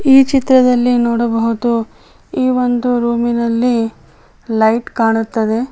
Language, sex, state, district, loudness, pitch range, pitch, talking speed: Kannada, female, Karnataka, Chamarajanagar, -14 LUFS, 230-250 Hz, 235 Hz, 95 wpm